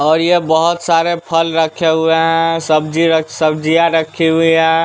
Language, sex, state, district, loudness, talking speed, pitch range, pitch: Hindi, male, Bihar, West Champaran, -13 LUFS, 175 wpm, 160-165 Hz, 165 Hz